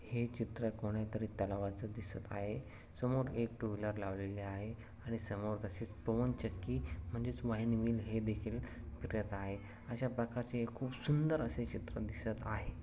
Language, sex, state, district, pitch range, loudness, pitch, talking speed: Marathi, male, Maharashtra, Sindhudurg, 105-115 Hz, -41 LUFS, 110 Hz, 140 wpm